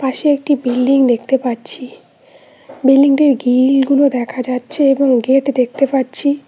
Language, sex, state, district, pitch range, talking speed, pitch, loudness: Bengali, female, West Bengal, Cooch Behar, 250-280 Hz, 140 wpm, 270 Hz, -14 LUFS